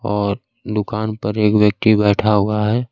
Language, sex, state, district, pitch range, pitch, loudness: Hindi, male, Bihar, Kaimur, 105-110 Hz, 105 Hz, -17 LUFS